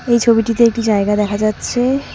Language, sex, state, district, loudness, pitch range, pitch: Bengali, female, West Bengal, Cooch Behar, -15 LUFS, 210-235 Hz, 230 Hz